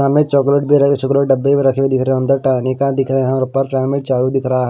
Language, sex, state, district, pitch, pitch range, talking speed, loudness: Hindi, male, Maharashtra, Washim, 135 Hz, 130-140 Hz, 305 wpm, -15 LUFS